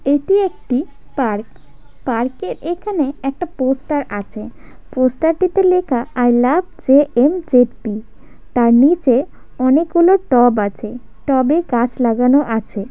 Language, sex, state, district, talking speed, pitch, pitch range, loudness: Bengali, female, West Bengal, Paschim Medinipur, 150 wpm, 260 Hz, 240-325 Hz, -16 LUFS